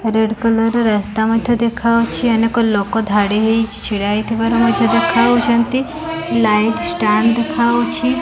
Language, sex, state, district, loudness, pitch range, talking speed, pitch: Odia, female, Odisha, Khordha, -15 LUFS, 220-235 Hz, 130 wpm, 230 Hz